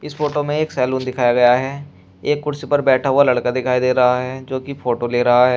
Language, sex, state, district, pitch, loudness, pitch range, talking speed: Hindi, male, Uttar Pradesh, Shamli, 130 Hz, -18 LUFS, 125-140 Hz, 260 wpm